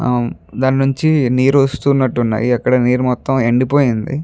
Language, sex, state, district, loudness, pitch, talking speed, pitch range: Telugu, male, Andhra Pradesh, Guntur, -15 LUFS, 130 Hz, 140 wpm, 125-135 Hz